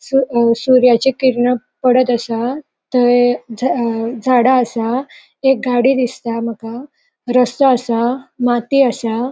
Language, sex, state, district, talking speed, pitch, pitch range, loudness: Konkani, female, Goa, North and South Goa, 120 wpm, 245 Hz, 235-260 Hz, -15 LUFS